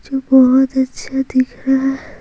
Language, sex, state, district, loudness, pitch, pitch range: Hindi, female, Bihar, Patna, -15 LUFS, 265 Hz, 260-270 Hz